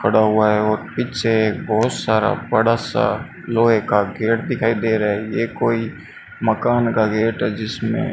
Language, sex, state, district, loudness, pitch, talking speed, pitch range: Hindi, male, Rajasthan, Bikaner, -19 LUFS, 110 Hz, 170 wpm, 110-115 Hz